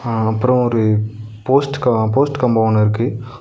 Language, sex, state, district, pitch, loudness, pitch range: Tamil, male, Tamil Nadu, Nilgiris, 115 Hz, -16 LUFS, 110-125 Hz